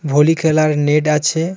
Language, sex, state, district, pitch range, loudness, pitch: Bengali, male, West Bengal, Cooch Behar, 150-160 Hz, -14 LUFS, 155 Hz